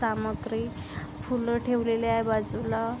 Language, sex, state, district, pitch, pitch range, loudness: Marathi, female, Maharashtra, Aurangabad, 230 Hz, 230-240 Hz, -29 LUFS